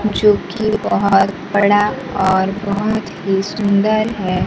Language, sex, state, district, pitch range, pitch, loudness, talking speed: Hindi, female, Bihar, Kaimur, 195-215 Hz, 205 Hz, -16 LUFS, 105 wpm